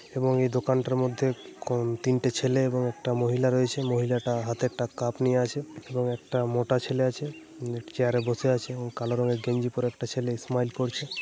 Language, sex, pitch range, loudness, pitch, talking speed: Bengali, male, 120-130 Hz, -28 LUFS, 125 Hz, 185 wpm